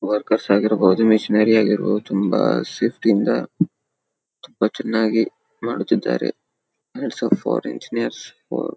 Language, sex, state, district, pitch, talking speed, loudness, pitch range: Kannada, male, Karnataka, Dharwad, 105 Hz, 110 wpm, -20 LUFS, 105-110 Hz